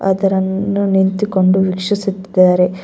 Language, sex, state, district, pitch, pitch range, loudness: Kannada, female, Karnataka, Bellary, 190 Hz, 185-195 Hz, -15 LUFS